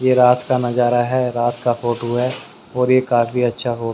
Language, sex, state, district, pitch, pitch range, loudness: Hindi, male, Haryana, Rohtak, 120 Hz, 120-125 Hz, -18 LUFS